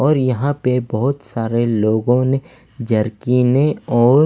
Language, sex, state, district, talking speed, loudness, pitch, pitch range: Hindi, male, Himachal Pradesh, Shimla, 140 wpm, -17 LUFS, 125 Hz, 120-135 Hz